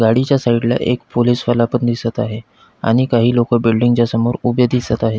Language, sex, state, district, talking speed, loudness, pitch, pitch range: Marathi, male, Maharashtra, Pune, 195 wpm, -16 LUFS, 120 Hz, 115-120 Hz